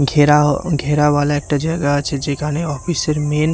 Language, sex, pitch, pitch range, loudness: Bengali, male, 150 Hz, 145-155 Hz, -17 LUFS